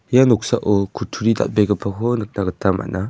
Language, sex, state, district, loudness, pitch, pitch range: Garo, male, Meghalaya, West Garo Hills, -19 LUFS, 105 Hz, 100-115 Hz